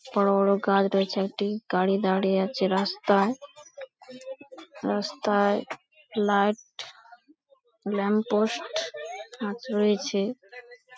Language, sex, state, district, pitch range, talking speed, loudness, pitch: Bengali, female, West Bengal, Paschim Medinipur, 195-250 Hz, 80 wpm, -26 LUFS, 210 Hz